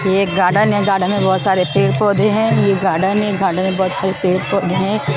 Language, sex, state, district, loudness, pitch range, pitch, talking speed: Hindi, female, Maharashtra, Mumbai Suburban, -15 LUFS, 185-200 Hz, 190 Hz, 220 wpm